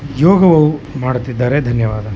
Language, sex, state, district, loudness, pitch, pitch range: Kannada, male, Karnataka, Chamarajanagar, -13 LUFS, 135 Hz, 125-150 Hz